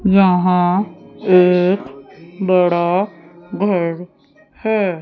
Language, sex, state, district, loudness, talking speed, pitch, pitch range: Hindi, female, Chandigarh, Chandigarh, -16 LUFS, 60 wpm, 180 Hz, 175-195 Hz